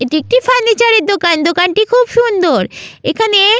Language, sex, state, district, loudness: Bengali, female, West Bengal, Malda, -11 LUFS